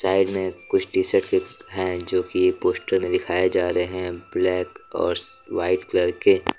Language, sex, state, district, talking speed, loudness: Hindi, male, Jharkhand, Deoghar, 175 wpm, -23 LUFS